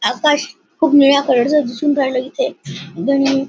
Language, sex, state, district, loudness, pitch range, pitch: Marathi, female, Maharashtra, Nagpur, -15 LUFS, 255-290 Hz, 275 Hz